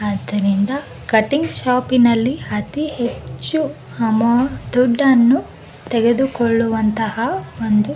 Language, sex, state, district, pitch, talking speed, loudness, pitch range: Kannada, female, Karnataka, Bellary, 235 Hz, 70 wpm, -17 LUFS, 220-265 Hz